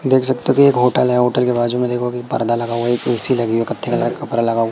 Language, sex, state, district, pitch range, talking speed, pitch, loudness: Hindi, male, Madhya Pradesh, Katni, 115-125 Hz, 270 wpm, 120 Hz, -16 LUFS